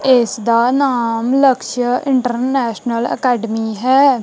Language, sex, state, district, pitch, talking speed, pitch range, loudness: Punjabi, female, Punjab, Kapurthala, 245 Hz, 100 wpm, 230-260 Hz, -15 LUFS